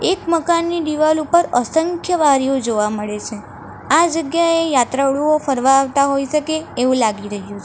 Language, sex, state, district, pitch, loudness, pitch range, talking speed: Gujarati, female, Gujarat, Valsad, 285 Hz, -17 LUFS, 250-330 Hz, 150 wpm